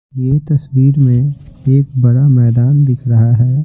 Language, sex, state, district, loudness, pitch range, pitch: Hindi, male, Bihar, Patna, -12 LUFS, 125-140 Hz, 135 Hz